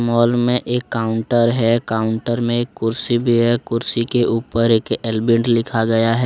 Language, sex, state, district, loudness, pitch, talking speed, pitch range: Hindi, male, Jharkhand, Deoghar, -18 LUFS, 115 Hz, 180 wpm, 115-120 Hz